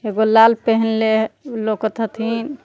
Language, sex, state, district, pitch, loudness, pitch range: Magahi, female, Jharkhand, Palamu, 225 Hz, -17 LUFS, 220-230 Hz